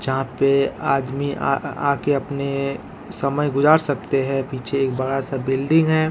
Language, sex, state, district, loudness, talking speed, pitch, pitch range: Hindi, male, Jharkhand, Ranchi, -21 LUFS, 145 wpm, 140 Hz, 135-145 Hz